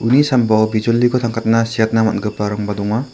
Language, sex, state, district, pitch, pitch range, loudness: Garo, male, Meghalaya, South Garo Hills, 115 Hz, 110-115 Hz, -16 LUFS